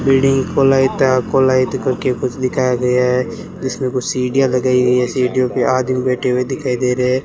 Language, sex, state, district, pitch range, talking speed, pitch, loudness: Hindi, male, Rajasthan, Bikaner, 125-130 Hz, 190 wpm, 130 Hz, -16 LUFS